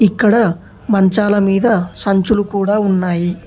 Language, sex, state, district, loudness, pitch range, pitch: Telugu, male, Telangana, Hyderabad, -14 LUFS, 190-215 Hz, 200 Hz